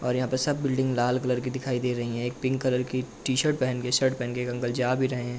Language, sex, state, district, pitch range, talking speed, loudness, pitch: Hindi, male, Uttar Pradesh, Jalaun, 125-130 Hz, 310 wpm, -27 LUFS, 125 Hz